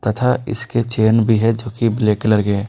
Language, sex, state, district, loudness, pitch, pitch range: Hindi, male, Jharkhand, Garhwa, -17 LUFS, 115 Hz, 110-115 Hz